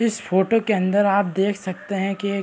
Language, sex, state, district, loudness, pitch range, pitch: Hindi, male, Chhattisgarh, Raigarh, -21 LUFS, 190-205 Hz, 200 Hz